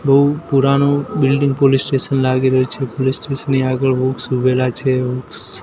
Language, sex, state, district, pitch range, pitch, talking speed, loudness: Gujarati, male, Gujarat, Gandhinagar, 130-140 Hz, 135 Hz, 150 wpm, -16 LUFS